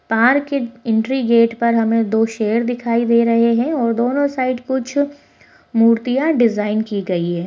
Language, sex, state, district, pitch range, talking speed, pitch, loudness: Hindi, female, Bihar, Begusarai, 225-255 Hz, 170 wpm, 235 Hz, -17 LUFS